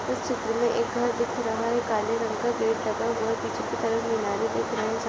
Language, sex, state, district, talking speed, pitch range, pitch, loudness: Hindi, female, Goa, North and South Goa, 235 wpm, 225-235 Hz, 230 Hz, -27 LUFS